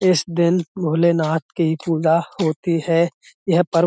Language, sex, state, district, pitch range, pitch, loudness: Hindi, male, Uttar Pradesh, Budaun, 160-175 Hz, 170 Hz, -19 LUFS